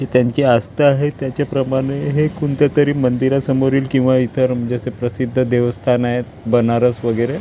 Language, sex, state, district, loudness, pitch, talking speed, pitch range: Marathi, male, Maharashtra, Gondia, -17 LUFS, 130 Hz, 130 wpm, 120-140 Hz